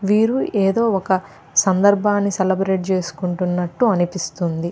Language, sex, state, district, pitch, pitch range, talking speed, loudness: Telugu, female, Andhra Pradesh, Chittoor, 190 Hz, 180-200 Hz, 75 wpm, -19 LUFS